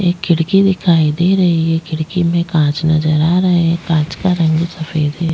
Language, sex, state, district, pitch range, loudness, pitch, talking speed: Hindi, female, Chhattisgarh, Jashpur, 160-175 Hz, -14 LUFS, 165 Hz, 200 wpm